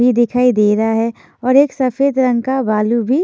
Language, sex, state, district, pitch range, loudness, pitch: Hindi, female, Maharashtra, Washim, 230-260 Hz, -15 LUFS, 250 Hz